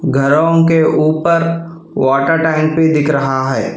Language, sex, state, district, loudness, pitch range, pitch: Hindi, male, Telangana, Hyderabad, -13 LUFS, 140-165 Hz, 155 Hz